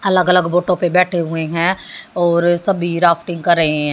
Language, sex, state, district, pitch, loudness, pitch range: Hindi, female, Haryana, Jhajjar, 175 Hz, -16 LUFS, 170-180 Hz